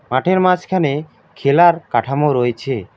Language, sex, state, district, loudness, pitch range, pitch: Bengali, male, West Bengal, Alipurduar, -16 LUFS, 130-175 Hz, 145 Hz